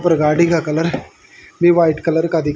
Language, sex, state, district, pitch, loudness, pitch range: Hindi, male, Haryana, Rohtak, 165 Hz, -15 LUFS, 155-170 Hz